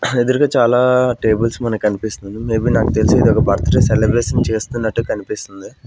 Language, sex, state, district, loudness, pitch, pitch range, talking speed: Telugu, male, Andhra Pradesh, Sri Satya Sai, -16 LUFS, 115 Hz, 110-125 Hz, 165 wpm